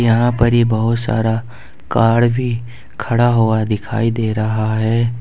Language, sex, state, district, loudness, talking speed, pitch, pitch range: Hindi, male, Jharkhand, Ranchi, -16 LUFS, 150 wpm, 115 Hz, 110-120 Hz